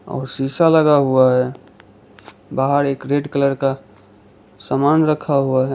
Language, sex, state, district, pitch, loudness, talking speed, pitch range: Hindi, male, Gujarat, Valsad, 135 Hz, -17 LUFS, 145 wpm, 130-145 Hz